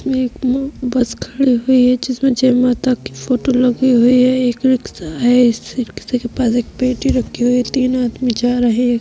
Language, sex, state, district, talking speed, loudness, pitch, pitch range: Hindi, female, Uttar Pradesh, Budaun, 205 wpm, -15 LUFS, 250 Hz, 245-255 Hz